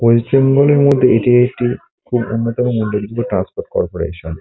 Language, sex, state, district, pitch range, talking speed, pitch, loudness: Bengali, male, West Bengal, Kolkata, 110-125 Hz, 125 wpm, 120 Hz, -15 LUFS